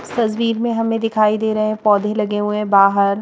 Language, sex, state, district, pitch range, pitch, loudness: Hindi, female, Madhya Pradesh, Bhopal, 210-225 Hz, 215 Hz, -17 LUFS